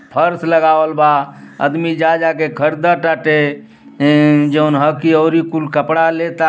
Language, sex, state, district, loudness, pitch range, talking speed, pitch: Bhojpuri, male, Uttar Pradesh, Ghazipur, -14 LUFS, 150-165 Hz, 150 wpm, 155 Hz